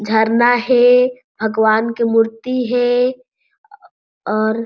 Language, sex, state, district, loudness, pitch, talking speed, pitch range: Chhattisgarhi, female, Chhattisgarh, Jashpur, -15 LUFS, 245 Hz, 105 wpm, 225-255 Hz